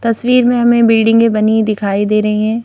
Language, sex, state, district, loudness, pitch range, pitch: Hindi, female, Madhya Pradesh, Bhopal, -12 LUFS, 215-235 Hz, 225 Hz